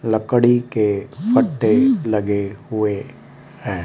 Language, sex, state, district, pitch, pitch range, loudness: Hindi, male, Rajasthan, Jaipur, 115 Hz, 105-135 Hz, -18 LUFS